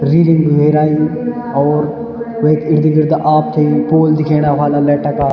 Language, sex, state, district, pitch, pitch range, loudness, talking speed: Garhwali, male, Uttarakhand, Tehri Garhwal, 155 Hz, 150-160 Hz, -13 LUFS, 160 wpm